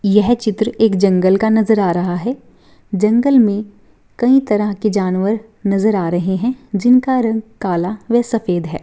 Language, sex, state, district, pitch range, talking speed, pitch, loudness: Hindi, female, Chhattisgarh, Rajnandgaon, 195-230 Hz, 170 wpm, 215 Hz, -16 LUFS